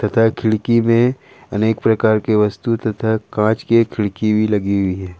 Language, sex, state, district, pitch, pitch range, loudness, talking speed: Hindi, male, Jharkhand, Ranchi, 110 Hz, 105-115 Hz, -17 LUFS, 175 wpm